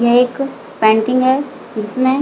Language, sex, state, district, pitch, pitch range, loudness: Hindi, female, Chhattisgarh, Bilaspur, 255 Hz, 230-265 Hz, -16 LUFS